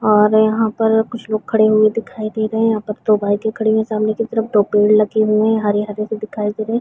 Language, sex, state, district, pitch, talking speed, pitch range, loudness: Hindi, female, Chhattisgarh, Bilaspur, 215 Hz, 275 wpm, 210-220 Hz, -16 LUFS